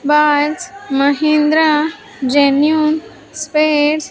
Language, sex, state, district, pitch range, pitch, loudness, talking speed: English, female, Andhra Pradesh, Sri Satya Sai, 295-310 Hz, 305 Hz, -14 LUFS, 60 wpm